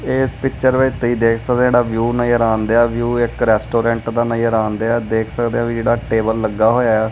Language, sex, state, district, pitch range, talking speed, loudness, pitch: Punjabi, male, Punjab, Kapurthala, 110-120 Hz, 210 wpm, -16 LUFS, 115 Hz